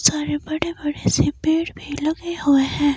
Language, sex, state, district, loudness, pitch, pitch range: Hindi, female, Himachal Pradesh, Shimla, -21 LUFS, 295 Hz, 280-320 Hz